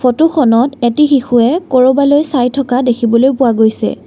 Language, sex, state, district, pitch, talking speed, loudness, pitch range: Assamese, female, Assam, Kamrup Metropolitan, 255 Hz, 135 wpm, -11 LUFS, 240-280 Hz